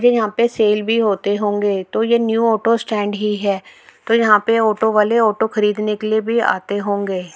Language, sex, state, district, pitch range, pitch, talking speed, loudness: Hindi, female, Uttar Pradesh, Etah, 205-225 Hz, 215 Hz, 210 wpm, -17 LUFS